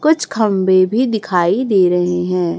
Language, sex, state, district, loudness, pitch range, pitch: Hindi, female, Chhattisgarh, Raipur, -15 LUFS, 180-220 Hz, 190 Hz